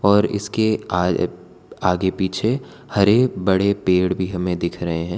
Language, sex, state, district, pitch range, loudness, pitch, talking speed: Hindi, male, Gujarat, Valsad, 90-105 Hz, -20 LUFS, 95 Hz, 150 wpm